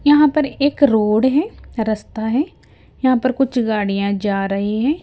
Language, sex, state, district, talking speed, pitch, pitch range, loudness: Hindi, female, Himachal Pradesh, Shimla, 165 wpm, 250 Hz, 210-285 Hz, -18 LUFS